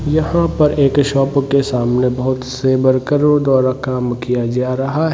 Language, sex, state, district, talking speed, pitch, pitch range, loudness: Hindi, male, Jharkhand, Sahebganj, 185 wpm, 135 Hz, 130-145 Hz, -15 LUFS